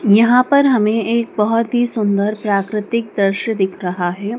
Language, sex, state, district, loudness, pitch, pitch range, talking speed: Hindi, female, Madhya Pradesh, Dhar, -16 LUFS, 215 Hz, 200-235 Hz, 165 wpm